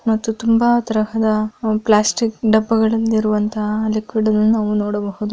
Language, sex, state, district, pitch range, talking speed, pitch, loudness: Kannada, female, Karnataka, Mysore, 215-225 Hz, 90 wpm, 220 Hz, -17 LUFS